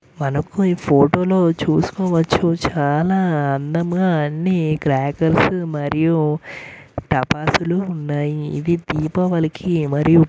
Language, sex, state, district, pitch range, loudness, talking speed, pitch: Telugu, male, Telangana, Karimnagar, 145-175 Hz, -18 LUFS, 95 wpm, 160 Hz